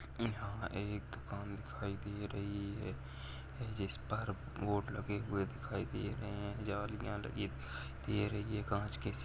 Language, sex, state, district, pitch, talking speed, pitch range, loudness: Hindi, male, Maharashtra, Chandrapur, 100 Hz, 155 wpm, 100-105 Hz, -42 LUFS